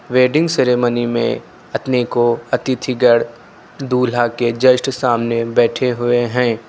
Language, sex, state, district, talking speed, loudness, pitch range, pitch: Hindi, male, Uttar Pradesh, Lucknow, 115 wpm, -16 LUFS, 120-125 Hz, 120 Hz